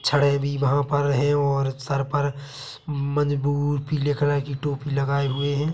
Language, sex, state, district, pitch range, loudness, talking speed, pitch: Hindi, male, Chhattisgarh, Bilaspur, 140-145 Hz, -23 LUFS, 165 wpm, 140 Hz